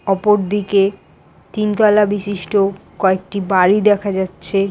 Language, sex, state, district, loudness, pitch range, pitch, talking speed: Bengali, female, West Bengal, Paschim Medinipur, -16 LUFS, 195-205 Hz, 200 Hz, 115 wpm